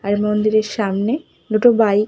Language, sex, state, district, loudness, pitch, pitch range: Bengali, female, West Bengal, Malda, -17 LUFS, 215 Hz, 205-225 Hz